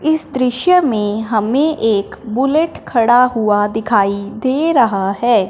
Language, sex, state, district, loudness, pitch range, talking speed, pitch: Hindi, female, Punjab, Fazilka, -15 LUFS, 210-270 Hz, 130 wpm, 235 Hz